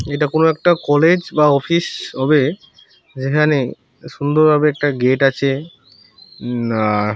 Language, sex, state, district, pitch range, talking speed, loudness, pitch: Bengali, male, West Bengal, Purulia, 130-155 Hz, 140 wpm, -16 LUFS, 145 Hz